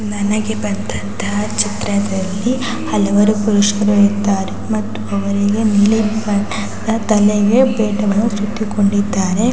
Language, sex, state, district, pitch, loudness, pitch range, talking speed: Kannada, female, Karnataka, Gulbarga, 205 Hz, -16 LUFS, 195-215 Hz, 90 wpm